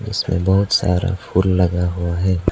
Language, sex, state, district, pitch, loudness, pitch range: Hindi, male, Arunachal Pradesh, Lower Dibang Valley, 95 Hz, -18 LUFS, 90-95 Hz